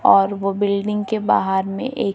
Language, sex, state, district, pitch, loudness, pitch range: Hindi, female, Maharashtra, Gondia, 200 Hz, -19 LUFS, 195-210 Hz